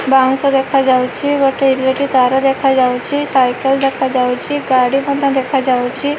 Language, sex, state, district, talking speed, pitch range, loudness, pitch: Odia, female, Odisha, Malkangiri, 115 wpm, 255-275 Hz, -14 LUFS, 270 Hz